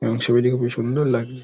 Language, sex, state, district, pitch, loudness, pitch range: Bengali, male, West Bengal, Dakshin Dinajpur, 120 Hz, -20 LUFS, 120-125 Hz